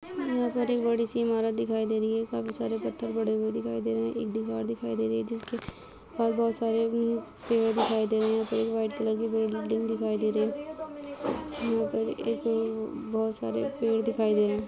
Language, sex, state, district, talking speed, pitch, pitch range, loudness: Hindi, female, Uttar Pradesh, Jalaun, 200 wpm, 225 Hz, 215-230 Hz, -29 LUFS